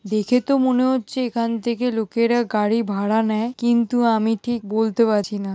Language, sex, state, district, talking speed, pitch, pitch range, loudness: Bengali, male, West Bengal, Jalpaiguri, 175 wpm, 230 Hz, 215-240 Hz, -20 LUFS